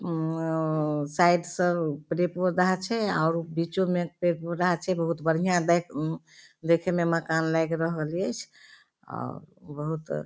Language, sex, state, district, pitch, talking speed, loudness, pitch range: Maithili, female, Bihar, Darbhanga, 165 Hz, 135 wpm, -27 LUFS, 160-175 Hz